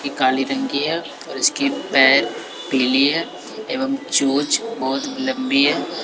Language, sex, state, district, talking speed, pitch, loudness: Hindi, male, Bihar, West Champaran, 150 wpm, 155 Hz, -19 LUFS